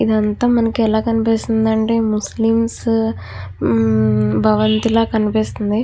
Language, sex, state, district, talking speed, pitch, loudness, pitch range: Telugu, female, Andhra Pradesh, Krishna, 95 wpm, 220 Hz, -16 LUFS, 210-225 Hz